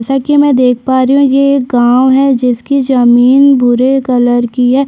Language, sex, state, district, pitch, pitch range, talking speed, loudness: Hindi, female, Chhattisgarh, Sukma, 260 Hz, 245-275 Hz, 210 wpm, -9 LUFS